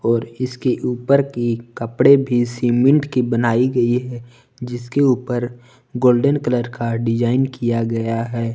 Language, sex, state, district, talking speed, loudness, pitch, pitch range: Hindi, male, Jharkhand, Palamu, 140 wpm, -18 LUFS, 120 Hz, 120-125 Hz